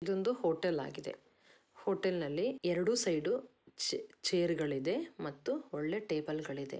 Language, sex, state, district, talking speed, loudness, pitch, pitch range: Kannada, female, Karnataka, Dakshina Kannada, 115 wpm, -36 LUFS, 175 Hz, 155-190 Hz